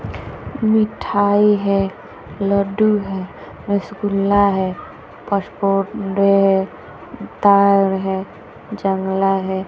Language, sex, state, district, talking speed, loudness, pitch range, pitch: Hindi, female, Bihar, West Champaran, 50 wpm, -17 LUFS, 190-200 Hz, 195 Hz